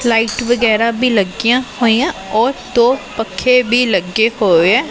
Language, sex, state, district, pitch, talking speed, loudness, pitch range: Punjabi, female, Punjab, Pathankot, 235 Hz, 145 wpm, -14 LUFS, 220-250 Hz